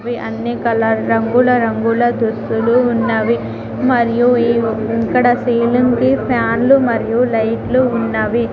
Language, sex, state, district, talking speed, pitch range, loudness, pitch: Telugu, female, Telangana, Mahabubabad, 100 wpm, 225-245 Hz, -15 LUFS, 235 Hz